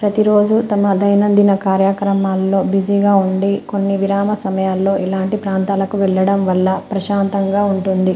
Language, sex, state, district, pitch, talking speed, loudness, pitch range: Telugu, female, Telangana, Nalgonda, 195 Hz, 110 wpm, -15 LUFS, 190-200 Hz